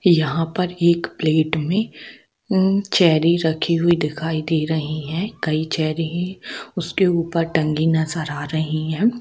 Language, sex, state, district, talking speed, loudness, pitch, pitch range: Hindi, female, Jharkhand, Sahebganj, 145 wpm, -20 LUFS, 165 Hz, 155-175 Hz